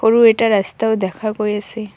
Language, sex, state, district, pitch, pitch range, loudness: Assamese, female, Assam, Kamrup Metropolitan, 215 Hz, 210-225 Hz, -16 LUFS